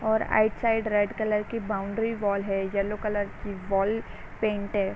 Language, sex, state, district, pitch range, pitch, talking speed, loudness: Hindi, female, Uttar Pradesh, Varanasi, 200-220 Hz, 210 Hz, 180 wpm, -27 LUFS